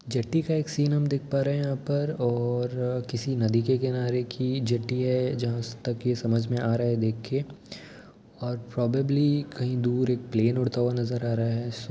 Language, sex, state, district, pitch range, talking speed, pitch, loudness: Hindi, male, Bihar, Muzaffarpur, 120-135 Hz, 205 wpm, 125 Hz, -27 LUFS